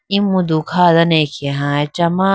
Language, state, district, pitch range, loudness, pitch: Idu Mishmi, Arunachal Pradesh, Lower Dibang Valley, 150-185 Hz, -15 LUFS, 165 Hz